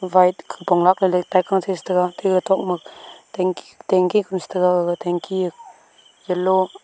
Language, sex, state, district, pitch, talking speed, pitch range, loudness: Wancho, female, Arunachal Pradesh, Longding, 185 Hz, 185 wpm, 180-190 Hz, -20 LUFS